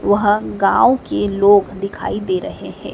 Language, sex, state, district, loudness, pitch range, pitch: Hindi, male, Madhya Pradesh, Dhar, -16 LUFS, 195-205 Hz, 205 Hz